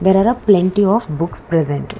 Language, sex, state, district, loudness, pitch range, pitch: English, female, Karnataka, Bangalore, -16 LUFS, 165-200 Hz, 190 Hz